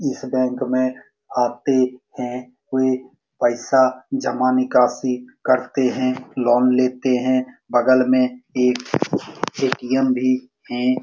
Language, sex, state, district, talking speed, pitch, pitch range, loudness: Hindi, male, Bihar, Supaul, 130 wpm, 130 Hz, 125-130 Hz, -20 LUFS